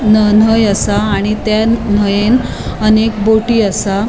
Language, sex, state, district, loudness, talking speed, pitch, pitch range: Konkani, female, Goa, North and South Goa, -12 LUFS, 115 wpm, 215 Hz, 205-220 Hz